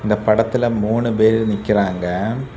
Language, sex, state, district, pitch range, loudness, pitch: Tamil, male, Tamil Nadu, Kanyakumari, 105-115 Hz, -18 LUFS, 110 Hz